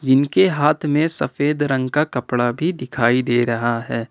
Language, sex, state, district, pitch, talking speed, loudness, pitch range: Hindi, male, Jharkhand, Ranchi, 135 Hz, 175 wpm, -19 LUFS, 120-150 Hz